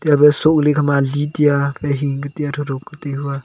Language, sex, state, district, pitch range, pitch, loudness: Wancho, male, Arunachal Pradesh, Longding, 140-150 Hz, 145 Hz, -17 LUFS